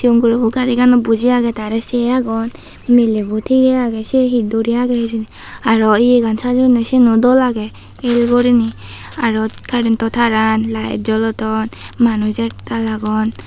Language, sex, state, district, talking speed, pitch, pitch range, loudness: Chakma, female, Tripura, Unakoti, 150 wpm, 230 Hz, 220-245 Hz, -15 LUFS